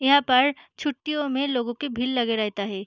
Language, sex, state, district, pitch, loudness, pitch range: Hindi, female, Bihar, Begusarai, 260 Hz, -24 LUFS, 240-285 Hz